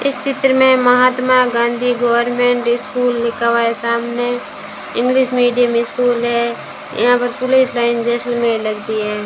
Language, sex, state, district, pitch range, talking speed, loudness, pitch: Hindi, female, Rajasthan, Jaisalmer, 235-250 Hz, 140 wpm, -15 LUFS, 245 Hz